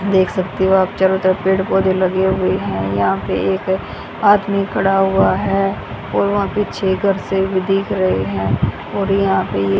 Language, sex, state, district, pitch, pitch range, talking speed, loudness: Hindi, female, Haryana, Jhajjar, 190 Hz, 185-195 Hz, 195 wpm, -17 LUFS